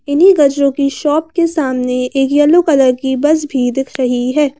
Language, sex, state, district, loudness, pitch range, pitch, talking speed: Hindi, female, Madhya Pradesh, Bhopal, -13 LUFS, 260-300 Hz, 280 Hz, 195 wpm